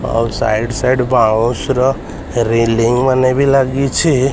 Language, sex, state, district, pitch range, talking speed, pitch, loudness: Odia, male, Odisha, Sambalpur, 115-130 Hz, 125 wpm, 125 Hz, -14 LUFS